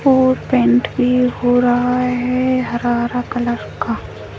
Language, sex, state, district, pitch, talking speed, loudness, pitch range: Hindi, female, Bihar, Bhagalpur, 245 Hz, 125 wpm, -17 LUFS, 245-250 Hz